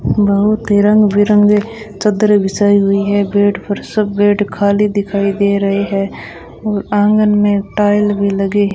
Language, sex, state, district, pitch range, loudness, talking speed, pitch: Hindi, female, Rajasthan, Bikaner, 200-210 Hz, -13 LUFS, 165 wpm, 205 Hz